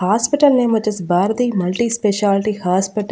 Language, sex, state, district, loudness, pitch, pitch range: Telugu, female, Andhra Pradesh, Annamaya, -17 LUFS, 210 Hz, 195-235 Hz